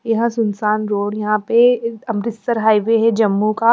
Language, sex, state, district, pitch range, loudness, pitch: Hindi, female, Punjab, Pathankot, 215-230 Hz, -17 LUFS, 225 Hz